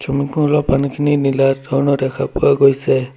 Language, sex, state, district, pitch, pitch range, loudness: Assamese, male, Assam, Sonitpur, 140 Hz, 135-140 Hz, -16 LUFS